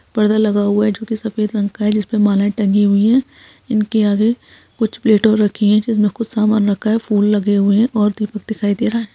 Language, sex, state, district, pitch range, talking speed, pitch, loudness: Hindi, female, Bihar, Saharsa, 205-220 Hz, 235 wpm, 215 Hz, -16 LUFS